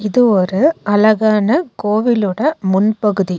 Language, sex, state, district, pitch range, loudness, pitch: Tamil, female, Tamil Nadu, Nilgiris, 205-240 Hz, -14 LUFS, 215 Hz